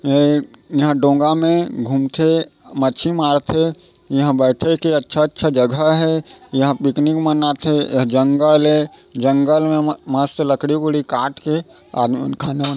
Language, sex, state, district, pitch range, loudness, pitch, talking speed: Chhattisgarhi, male, Chhattisgarh, Raigarh, 140-155 Hz, -17 LUFS, 150 Hz, 140 wpm